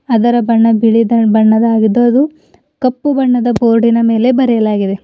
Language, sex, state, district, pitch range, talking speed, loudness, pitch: Kannada, female, Karnataka, Bidar, 225-250 Hz, 120 wpm, -11 LUFS, 230 Hz